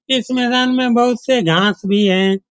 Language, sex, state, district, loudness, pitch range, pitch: Hindi, male, Bihar, Saran, -15 LUFS, 195-255 Hz, 240 Hz